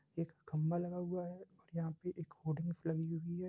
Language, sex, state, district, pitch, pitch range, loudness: Hindi, male, Bihar, Samastipur, 170 Hz, 160-180 Hz, -41 LUFS